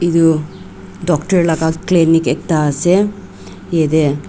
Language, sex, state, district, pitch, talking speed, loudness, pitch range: Nagamese, female, Nagaland, Dimapur, 165 Hz, 100 wpm, -15 LUFS, 155-175 Hz